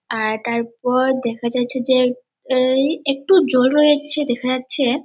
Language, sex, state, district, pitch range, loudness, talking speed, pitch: Bengali, male, West Bengal, Dakshin Dinajpur, 245-275 Hz, -17 LUFS, 130 wpm, 255 Hz